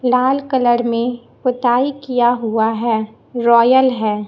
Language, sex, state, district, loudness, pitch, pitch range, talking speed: Hindi, male, Chhattisgarh, Raipur, -16 LUFS, 240 Hz, 230-255 Hz, 125 wpm